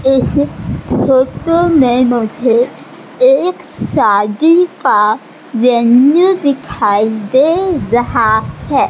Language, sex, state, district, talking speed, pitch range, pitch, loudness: Hindi, female, Madhya Pradesh, Katni, 80 wpm, 235-325 Hz, 260 Hz, -12 LUFS